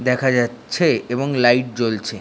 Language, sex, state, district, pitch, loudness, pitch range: Bengali, male, West Bengal, Dakshin Dinajpur, 120 Hz, -19 LUFS, 120-125 Hz